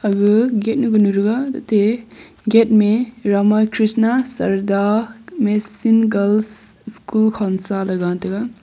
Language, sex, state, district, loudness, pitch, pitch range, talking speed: Wancho, female, Arunachal Pradesh, Longding, -17 LUFS, 215 Hz, 205-225 Hz, 120 wpm